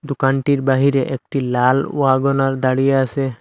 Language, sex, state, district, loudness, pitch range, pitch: Bengali, male, Assam, Hailakandi, -17 LUFS, 130-140 Hz, 135 Hz